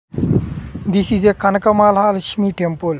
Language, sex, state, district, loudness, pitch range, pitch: Telugu, male, Andhra Pradesh, Sri Satya Sai, -16 LUFS, 190-210 Hz, 200 Hz